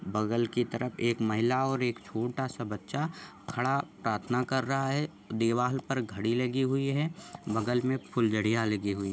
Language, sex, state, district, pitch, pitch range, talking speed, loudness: Hindi, male, Jharkhand, Sahebganj, 125 Hz, 115-135 Hz, 185 wpm, -31 LUFS